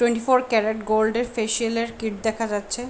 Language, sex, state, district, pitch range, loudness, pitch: Bengali, female, West Bengal, Paschim Medinipur, 220-240 Hz, -23 LUFS, 225 Hz